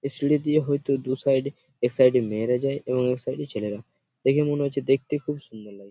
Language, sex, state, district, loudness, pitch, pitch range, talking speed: Bengali, male, West Bengal, Purulia, -24 LUFS, 135 Hz, 125-140 Hz, 235 wpm